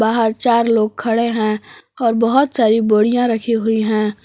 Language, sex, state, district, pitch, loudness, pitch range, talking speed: Hindi, female, Jharkhand, Palamu, 225 Hz, -16 LUFS, 220-235 Hz, 170 wpm